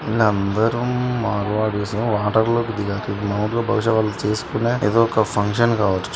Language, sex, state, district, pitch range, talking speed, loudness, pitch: Telugu, male, Andhra Pradesh, Srikakulam, 105-115 Hz, 115 wpm, -20 LUFS, 110 Hz